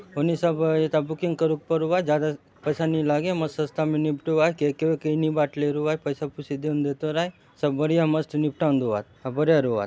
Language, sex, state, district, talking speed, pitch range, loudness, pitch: Halbi, male, Chhattisgarh, Bastar, 195 wpm, 145-160 Hz, -24 LUFS, 155 Hz